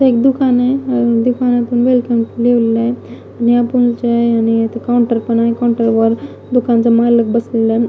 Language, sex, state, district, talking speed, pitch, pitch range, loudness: Marathi, female, Maharashtra, Mumbai Suburban, 145 wpm, 235 Hz, 230-245 Hz, -14 LUFS